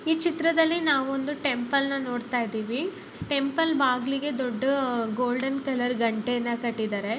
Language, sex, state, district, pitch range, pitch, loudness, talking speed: Kannada, female, Karnataka, Bellary, 240-285 Hz, 265 Hz, -26 LUFS, 125 wpm